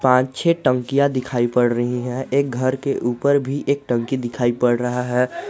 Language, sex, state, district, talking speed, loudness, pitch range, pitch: Hindi, male, Jharkhand, Garhwa, 195 wpm, -20 LUFS, 125-140 Hz, 125 Hz